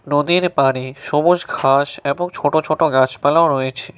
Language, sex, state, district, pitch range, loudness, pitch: Bengali, male, West Bengal, Cooch Behar, 135-165 Hz, -17 LUFS, 145 Hz